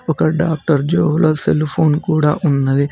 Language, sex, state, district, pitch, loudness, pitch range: Telugu, male, Telangana, Mahabubabad, 155 Hz, -15 LUFS, 150-160 Hz